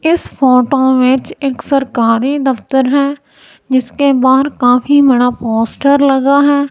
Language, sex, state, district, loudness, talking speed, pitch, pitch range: Hindi, female, Punjab, Kapurthala, -12 LUFS, 125 wpm, 270 Hz, 255-280 Hz